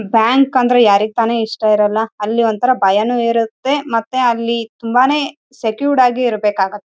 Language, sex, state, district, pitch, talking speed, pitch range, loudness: Kannada, female, Karnataka, Raichur, 230 Hz, 70 wpm, 215-250 Hz, -15 LUFS